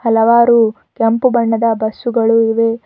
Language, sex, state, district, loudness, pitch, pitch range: Kannada, female, Karnataka, Bidar, -13 LUFS, 230 Hz, 225-235 Hz